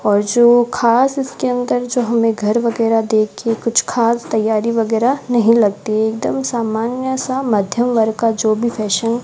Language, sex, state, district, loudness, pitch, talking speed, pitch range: Hindi, female, Rajasthan, Bikaner, -16 LUFS, 230 Hz, 175 wpm, 220-240 Hz